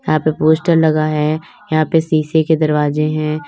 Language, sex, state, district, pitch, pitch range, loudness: Hindi, female, Uttar Pradesh, Lalitpur, 155 Hz, 155-160 Hz, -15 LUFS